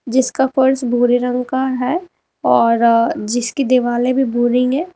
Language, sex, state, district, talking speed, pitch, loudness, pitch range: Hindi, female, Uttar Pradesh, Lalitpur, 145 wpm, 250 Hz, -16 LUFS, 245-265 Hz